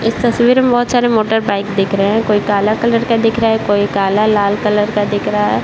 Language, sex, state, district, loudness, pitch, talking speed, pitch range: Hindi, male, Bihar, Saran, -14 LUFS, 210 Hz, 265 wpm, 205-230 Hz